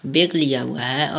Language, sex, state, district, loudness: Hindi, male, Jharkhand, Garhwa, -20 LUFS